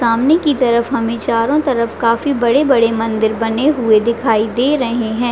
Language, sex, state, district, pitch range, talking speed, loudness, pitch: Hindi, female, Chhattisgarh, Raigarh, 230-265 Hz, 170 wpm, -15 LUFS, 235 Hz